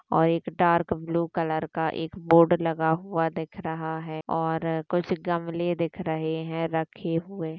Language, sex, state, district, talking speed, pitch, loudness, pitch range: Hindi, female, Maharashtra, Chandrapur, 165 wpm, 165 Hz, -26 LUFS, 160-170 Hz